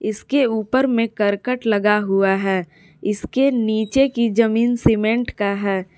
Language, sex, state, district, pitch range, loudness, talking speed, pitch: Hindi, female, Jharkhand, Palamu, 200-240 Hz, -19 LUFS, 140 wpm, 215 Hz